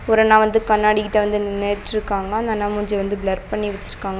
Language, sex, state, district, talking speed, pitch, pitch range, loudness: Tamil, female, Tamil Nadu, Namakkal, 200 wpm, 210 Hz, 200-215 Hz, -19 LUFS